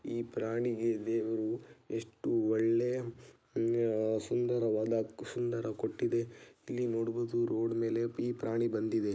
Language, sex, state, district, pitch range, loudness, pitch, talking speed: Kannada, male, Karnataka, Dakshina Kannada, 110-120 Hz, -34 LUFS, 115 Hz, 100 wpm